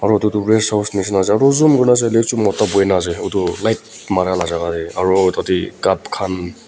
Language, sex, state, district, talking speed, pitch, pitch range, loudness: Nagamese, female, Nagaland, Kohima, 205 wpm, 105 Hz, 95-110 Hz, -16 LUFS